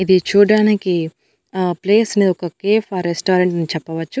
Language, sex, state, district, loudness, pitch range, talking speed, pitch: Telugu, female, Andhra Pradesh, Annamaya, -16 LUFS, 175-205 Hz, 155 wpm, 185 Hz